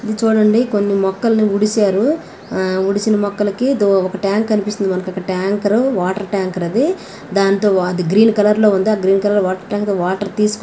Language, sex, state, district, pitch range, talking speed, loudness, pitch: Telugu, female, Telangana, Karimnagar, 190-215 Hz, 165 wpm, -16 LUFS, 205 Hz